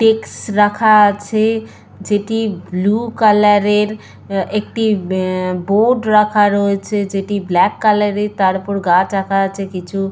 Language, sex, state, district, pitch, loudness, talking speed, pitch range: Bengali, female, West Bengal, Purulia, 205 Hz, -15 LUFS, 135 wpm, 195-215 Hz